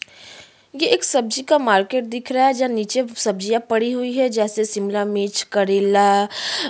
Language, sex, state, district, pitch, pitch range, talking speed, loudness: Hindi, female, Uttarakhand, Tehri Garhwal, 225 Hz, 200-255 Hz, 170 wpm, -19 LUFS